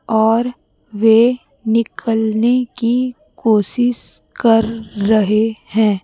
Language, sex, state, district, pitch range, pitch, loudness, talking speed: Hindi, female, Chhattisgarh, Raipur, 220-240 Hz, 225 Hz, -16 LUFS, 80 wpm